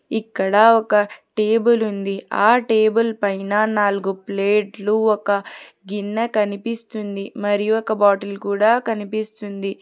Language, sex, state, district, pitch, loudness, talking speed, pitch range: Telugu, female, Telangana, Hyderabad, 210 Hz, -19 LUFS, 105 wpm, 200-220 Hz